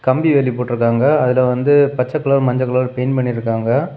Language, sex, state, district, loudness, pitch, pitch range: Tamil, male, Tamil Nadu, Kanyakumari, -16 LUFS, 130 Hz, 125-140 Hz